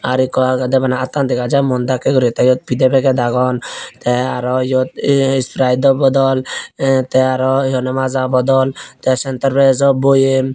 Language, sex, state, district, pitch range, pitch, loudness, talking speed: Chakma, male, Tripura, Unakoti, 130-135 Hz, 130 Hz, -15 LUFS, 165 wpm